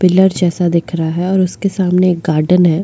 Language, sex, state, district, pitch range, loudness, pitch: Hindi, female, Goa, North and South Goa, 170-185 Hz, -14 LUFS, 180 Hz